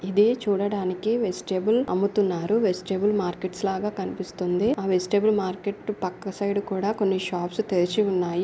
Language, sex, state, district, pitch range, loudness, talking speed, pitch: Telugu, female, Andhra Pradesh, Anantapur, 185-210 Hz, -25 LUFS, 120 wpm, 195 Hz